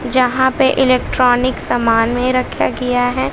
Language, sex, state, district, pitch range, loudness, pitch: Hindi, female, Bihar, West Champaran, 245-260 Hz, -15 LUFS, 250 Hz